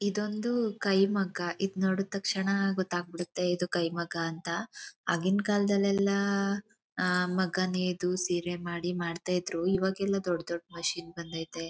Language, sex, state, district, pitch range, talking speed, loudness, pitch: Kannada, female, Karnataka, Chamarajanagar, 175-195 Hz, 110 wpm, -30 LUFS, 180 Hz